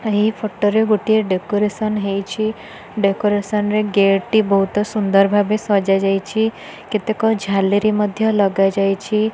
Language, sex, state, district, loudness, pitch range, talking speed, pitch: Odia, female, Odisha, Khordha, -17 LUFS, 195-215 Hz, 120 wpm, 205 Hz